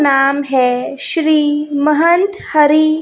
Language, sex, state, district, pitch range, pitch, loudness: Hindi, female, Chhattisgarh, Raipur, 280-310 Hz, 300 Hz, -13 LUFS